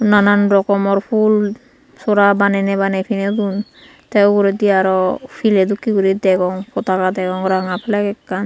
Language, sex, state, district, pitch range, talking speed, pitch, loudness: Chakma, female, Tripura, Unakoti, 190-205 Hz, 140 wpm, 200 Hz, -16 LUFS